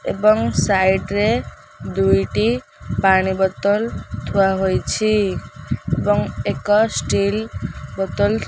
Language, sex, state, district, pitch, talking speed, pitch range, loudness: Odia, female, Odisha, Khordha, 195 Hz, 90 wpm, 175-215 Hz, -19 LUFS